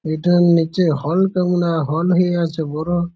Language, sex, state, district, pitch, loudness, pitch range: Bengali, male, West Bengal, Malda, 170 Hz, -17 LUFS, 160-175 Hz